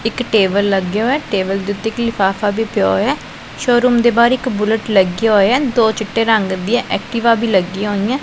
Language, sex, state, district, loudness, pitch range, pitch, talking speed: Punjabi, female, Punjab, Pathankot, -15 LUFS, 200-235 Hz, 220 Hz, 220 wpm